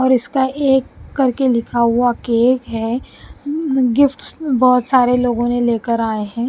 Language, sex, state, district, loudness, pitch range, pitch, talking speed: Hindi, female, Punjab, Pathankot, -16 LUFS, 235-265 Hz, 250 Hz, 155 wpm